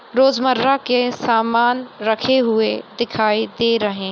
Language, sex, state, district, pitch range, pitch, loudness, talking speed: Hindi, female, Maharashtra, Nagpur, 220-255 Hz, 235 Hz, -18 LUFS, 115 wpm